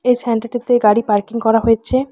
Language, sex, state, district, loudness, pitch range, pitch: Bengali, female, West Bengal, Alipurduar, -16 LUFS, 225-245 Hz, 230 Hz